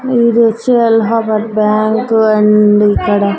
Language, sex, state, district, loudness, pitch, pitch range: Telugu, female, Andhra Pradesh, Annamaya, -11 LUFS, 220 Hz, 210-230 Hz